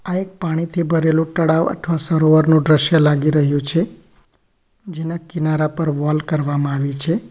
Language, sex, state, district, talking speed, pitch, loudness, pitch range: Gujarati, male, Gujarat, Valsad, 150 wpm, 160 Hz, -17 LUFS, 150-170 Hz